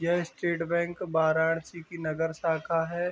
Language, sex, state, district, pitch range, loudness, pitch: Hindi, male, Uttar Pradesh, Varanasi, 160-170 Hz, -29 LUFS, 165 Hz